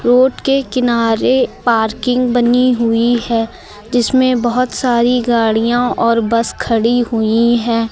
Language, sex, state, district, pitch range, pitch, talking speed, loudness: Hindi, female, Uttar Pradesh, Lucknow, 230-250 Hz, 240 Hz, 120 wpm, -14 LUFS